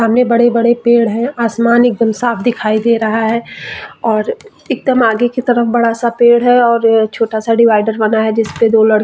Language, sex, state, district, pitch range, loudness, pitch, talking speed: Hindi, female, Chhattisgarh, Bastar, 225-240 Hz, -12 LUFS, 235 Hz, 210 wpm